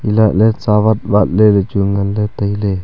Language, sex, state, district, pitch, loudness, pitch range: Wancho, male, Arunachal Pradesh, Longding, 105 Hz, -14 LUFS, 100-110 Hz